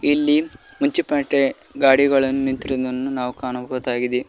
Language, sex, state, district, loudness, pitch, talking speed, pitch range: Kannada, male, Karnataka, Koppal, -20 LUFS, 135 Hz, 85 wpm, 130-145 Hz